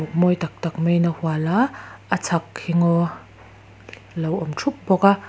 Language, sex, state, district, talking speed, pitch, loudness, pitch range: Mizo, female, Mizoram, Aizawl, 195 wpm, 170 Hz, -22 LUFS, 155-175 Hz